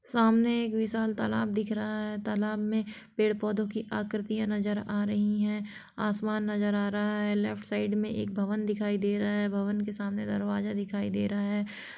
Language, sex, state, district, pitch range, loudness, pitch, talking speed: Hindi, female, Jharkhand, Sahebganj, 205-215 Hz, -30 LUFS, 210 Hz, 190 wpm